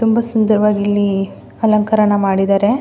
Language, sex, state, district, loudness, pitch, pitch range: Kannada, female, Karnataka, Mysore, -15 LUFS, 210 Hz, 200-220 Hz